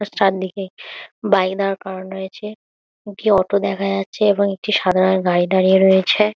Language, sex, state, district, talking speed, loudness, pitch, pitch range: Bengali, female, West Bengal, Kolkata, 170 wpm, -18 LUFS, 195 Hz, 190-205 Hz